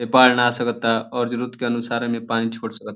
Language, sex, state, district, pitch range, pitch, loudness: Bhojpuri, male, Uttar Pradesh, Deoria, 115-120 Hz, 120 Hz, -21 LUFS